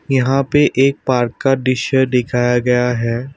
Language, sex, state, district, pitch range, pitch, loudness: Hindi, male, Assam, Kamrup Metropolitan, 125-135 Hz, 130 Hz, -15 LUFS